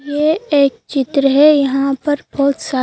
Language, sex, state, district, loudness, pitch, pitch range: Hindi, female, Madhya Pradesh, Bhopal, -14 LUFS, 280 Hz, 275-295 Hz